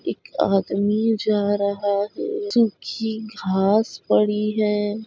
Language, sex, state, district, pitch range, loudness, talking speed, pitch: Hindi, female, Uttar Pradesh, Budaun, 200-220 Hz, -22 LUFS, 105 wpm, 210 Hz